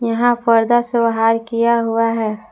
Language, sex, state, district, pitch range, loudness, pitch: Hindi, female, Jharkhand, Palamu, 225-235 Hz, -16 LUFS, 230 Hz